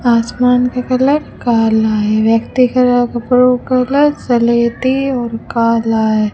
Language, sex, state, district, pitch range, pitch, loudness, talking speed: Hindi, female, Rajasthan, Bikaner, 230-255 Hz, 245 Hz, -13 LUFS, 140 wpm